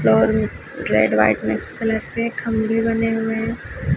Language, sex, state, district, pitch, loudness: Hindi, female, Chhattisgarh, Raipur, 220 Hz, -20 LUFS